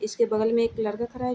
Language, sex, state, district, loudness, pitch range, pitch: Hindi, female, Bihar, Vaishali, -25 LUFS, 215-235 Hz, 230 Hz